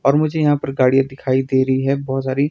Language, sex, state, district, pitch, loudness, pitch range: Hindi, male, Himachal Pradesh, Shimla, 135 Hz, -18 LUFS, 130-140 Hz